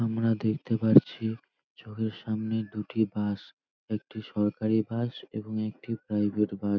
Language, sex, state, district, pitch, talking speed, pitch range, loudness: Bengali, male, West Bengal, North 24 Parganas, 110 Hz, 140 wpm, 105-110 Hz, -29 LUFS